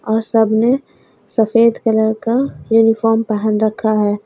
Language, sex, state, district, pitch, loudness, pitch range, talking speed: Hindi, female, Uttar Pradesh, Lalitpur, 225 Hz, -15 LUFS, 220-230 Hz, 140 wpm